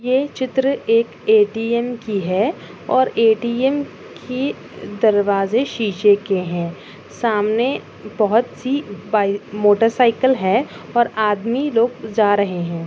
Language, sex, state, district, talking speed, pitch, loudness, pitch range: Hindi, female, Chhattisgarh, Kabirdham, 130 wpm, 225 Hz, -18 LUFS, 205-250 Hz